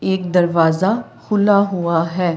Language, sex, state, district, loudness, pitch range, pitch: Hindi, female, Delhi, New Delhi, -17 LUFS, 170-200 Hz, 180 Hz